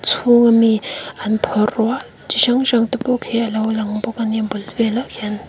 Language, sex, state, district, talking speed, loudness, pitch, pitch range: Mizo, female, Mizoram, Aizawl, 220 wpm, -17 LUFS, 230 Hz, 215-245 Hz